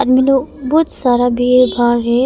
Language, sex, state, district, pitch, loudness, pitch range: Hindi, female, Arunachal Pradesh, Papum Pare, 255 Hz, -13 LUFS, 245-270 Hz